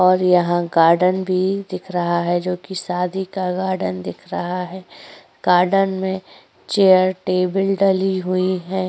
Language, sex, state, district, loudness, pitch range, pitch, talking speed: Hindi, female, Uttar Pradesh, Jyotiba Phule Nagar, -19 LUFS, 180-190 Hz, 185 Hz, 150 wpm